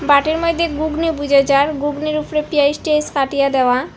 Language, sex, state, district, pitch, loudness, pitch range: Bengali, female, Assam, Hailakandi, 300 Hz, -16 LUFS, 280-310 Hz